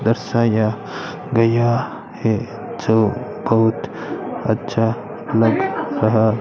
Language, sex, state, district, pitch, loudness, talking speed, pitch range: Hindi, male, Rajasthan, Bikaner, 115 Hz, -19 LUFS, 85 wpm, 110-115 Hz